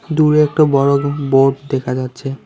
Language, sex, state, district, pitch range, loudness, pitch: Bengali, male, West Bengal, Alipurduar, 135-145 Hz, -15 LUFS, 140 Hz